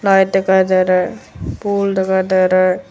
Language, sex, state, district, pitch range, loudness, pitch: Hindi, female, Arunachal Pradesh, Lower Dibang Valley, 185-195 Hz, -15 LUFS, 190 Hz